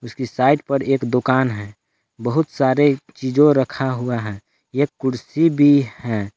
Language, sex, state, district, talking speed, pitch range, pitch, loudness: Hindi, male, Jharkhand, Palamu, 140 wpm, 120-145 Hz, 130 Hz, -19 LUFS